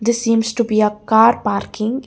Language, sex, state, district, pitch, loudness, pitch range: English, female, Karnataka, Bangalore, 225 Hz, -16 LUFS, 215-235 Hz